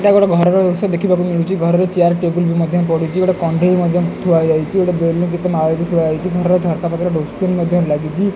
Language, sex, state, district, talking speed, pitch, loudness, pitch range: Odia, male, Odisha, Khordha, 215 wpm, 175 Hz, -15 LUFS, 170-180 Hz